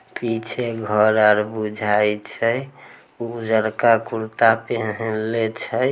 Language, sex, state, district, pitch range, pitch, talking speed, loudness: Maithili, male, Bihar, Samastipur, 110-115 Hz, 110 Hz, 100 wpm, -20 LUFS